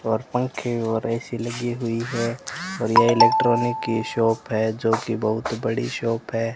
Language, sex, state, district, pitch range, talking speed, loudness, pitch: Hindi, male, Rajasthan, Bikaner, 115-120 Hz, 175 wpm, -23 LUFS, 115 Hz